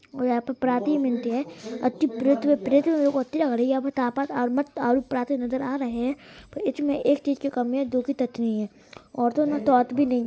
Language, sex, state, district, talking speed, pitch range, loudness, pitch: Hindi, female, Bihar, Gaya, 170 wpm, 245-280 Hz, -25 LUFS, 265 Hz